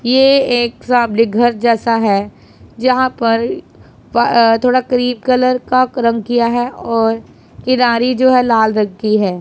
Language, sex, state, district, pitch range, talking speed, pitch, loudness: Hindi, female, Punjab, Pathankot, 225-255 Hz, 145 wpm, 240 Hz, -14 LUFS